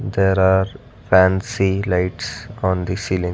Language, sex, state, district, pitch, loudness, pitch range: English, male, Karnataka, Bangalore, 95 Hz, -19 LUFS, 90-100 Hz